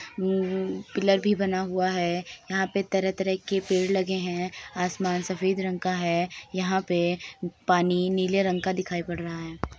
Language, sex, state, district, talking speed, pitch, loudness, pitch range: Hindi, female, Uttar Pradesh, Deoria, 180 wpm, 185 Hz, -27 LUFS, 180-190 Hz